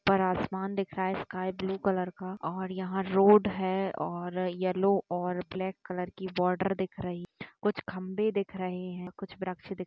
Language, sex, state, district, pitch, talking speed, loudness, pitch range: Hindi, female, Bihar, Kishanganj, 185 Hz, 200 wpm, -31 LUFS, 180-195 Hz